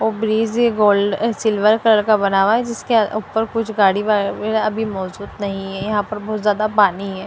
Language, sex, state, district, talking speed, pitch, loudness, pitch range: Hindi, female, Punjab, Fazilka, 205 wpm, 215 Hz, -18 LUFS, 200-220 Hz